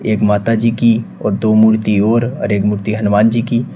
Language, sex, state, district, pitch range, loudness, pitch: Hindi, male, Uttar Pradesh, Shamli, 105-115 Hz, -14 LUFS, 110 Hz